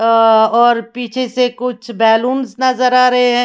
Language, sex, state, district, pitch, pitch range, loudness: Hindi, female, Haryana, Charkhi Dadri, 245 Hz, 230-250 Hz, -13 LUFS